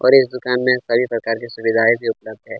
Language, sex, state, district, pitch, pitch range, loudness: Hindi, male, Chhattisgarh, Kabirdham, 120 Hz, 115-125 Hz, -18 LUFS